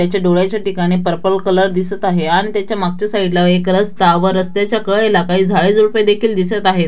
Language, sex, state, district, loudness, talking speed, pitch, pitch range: Marathi, female, Maharashtra, Dhule, -14 LUFS, 190 wpm, 190 Hz, 180-205 Hz